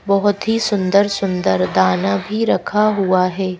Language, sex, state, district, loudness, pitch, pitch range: Hindi, female, Madhya Pradesh, Bhopal, -17 LUFS, 195 Hz, 180-205 Hz